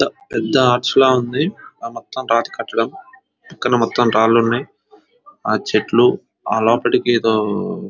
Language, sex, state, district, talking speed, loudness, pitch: Telugu, male, Telangana, Nalgonda, 130 wpm, -17 LUFS, 125 Hz